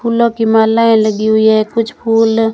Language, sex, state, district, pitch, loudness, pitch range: Hindi, female, Rajasthan, Bikaner, 225 Hz, -12 LUFS, 220-230 Hz